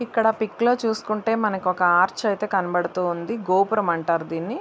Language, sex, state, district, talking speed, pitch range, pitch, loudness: Telugu, female, Andhra Pradesh, Visakhapatnam, 155 wpm, 175-225 Hz, 205 Hz, -22 LUFS